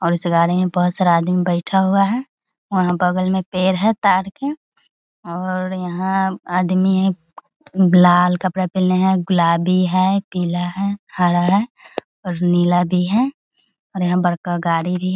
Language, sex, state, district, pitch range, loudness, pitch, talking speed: Hindi, female, Bihar, Muzaffarpur, 175-190 Hz, -18 LUFS, 185 Hz, 160 wpm